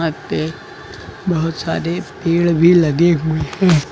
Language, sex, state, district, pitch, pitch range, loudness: Hindi, male, Uttar Pradesh, Lucknow, 165 Hz, 160-175 Hz, -16 LUFS